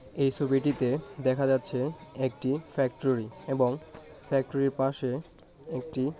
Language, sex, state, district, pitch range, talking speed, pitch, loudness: Bengali, male, West Bengal, Jhargram, 130-145 Hz, 95 wpm, 135 Hz, -30 LUFS